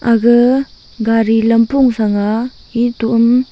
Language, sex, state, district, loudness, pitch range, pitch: Wancho, female, Arunachal Pradesh, Longding, -13 LUFS, 225-245 Hz, 230 Hz